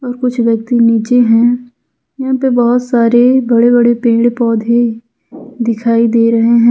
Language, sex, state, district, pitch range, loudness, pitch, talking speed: Hindi, female, Jharkhand, Ranchi, 230-245 Hz, -11 LUFS, 235 Hz, 150 wpm